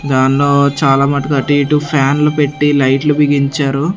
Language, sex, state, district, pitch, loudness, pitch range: Telugu, male, Andhra Pradesh, Sri Satya Sai, 140 Hz, -12 LUFS, 140-150 Hz